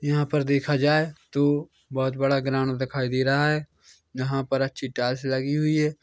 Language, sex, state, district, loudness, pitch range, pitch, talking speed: Hindi, male, Chhattisgarh, Korba, -25 LUFS, 135-150 Hz, 140 Hz, 190 wpm